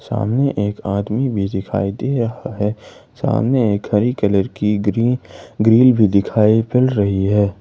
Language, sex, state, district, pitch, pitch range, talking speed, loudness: Hindi, male, Jharkhand, Ranchi, 105 Hz, 100-125 Hz, 160 wpm, -17 LUFS